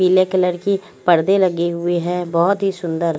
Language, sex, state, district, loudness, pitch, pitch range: Hindi, female, Haryana, Charkhi Dadri, -18 LUFS, 180 Hz, 170-190 Hz